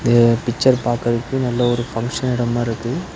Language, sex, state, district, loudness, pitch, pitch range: Tamil, male, Tamil Nadu, Nilgiris, -19 LUFS, 120 Hz, 120-125 Hz